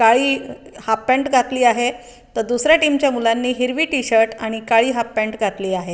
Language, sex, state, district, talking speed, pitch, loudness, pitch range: Marathi, female, Maharashtra, Aurangabad, 180 wpm, 240 Hz, -18 LUFS, 225-255 Hz